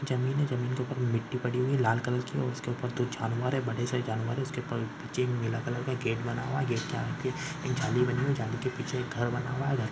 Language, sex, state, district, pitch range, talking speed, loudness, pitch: Hindi, male, Bihar, East Champaran, 120-130 Hz, 280 wpm, -31 LUFS, 125 Hz